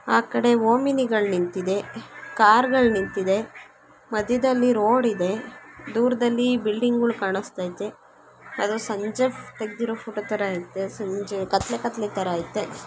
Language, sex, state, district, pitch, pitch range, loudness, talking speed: Kannada, female, Karnataka, Chamarajanagar, 215 Hz, 195-240 Hz, -23 LUFS, 110 wpm